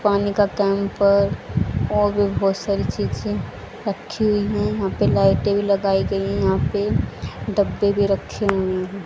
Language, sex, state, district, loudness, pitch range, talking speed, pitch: Hindi, female, Haryana, Charkhi Dadri, -21 LUFS, 195-205 Hz, 165 wpm, 200 Hz